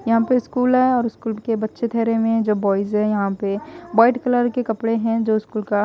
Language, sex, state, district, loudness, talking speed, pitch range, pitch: Hindi, female, Chhattisgarh, Raipur, -20 LUFS, 255 wpm, 215-245 Hz, 225 Hz